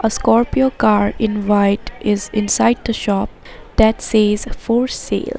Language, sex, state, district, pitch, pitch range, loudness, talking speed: English, female, Assam, Sonitpur, 220 Hz, 210-235 Hz, -17 LUFS, 145 wpm